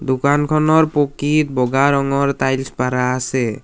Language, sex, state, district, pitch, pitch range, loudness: Assamese, male, Assam, Kamrup Metropolitan, 140 Hz, 130-145 Hz, -17 LUFS